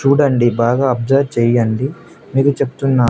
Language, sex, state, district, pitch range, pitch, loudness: Telugu, male, Andhra Pradesh, Annamaya, 120-140 Hz, 135 Hz, -15 LUFS